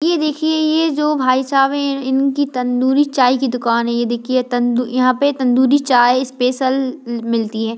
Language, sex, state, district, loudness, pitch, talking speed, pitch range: Hindi, female, Bihar, Jahanabad, -16 LUFS, 260 Hz, 175 wpm, 245-280 Hz